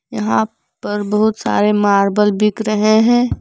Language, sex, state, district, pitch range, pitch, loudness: Hindi, female, Jharkhand, Palamu, 205-215 Hz, 210 Hz, -15 LUFS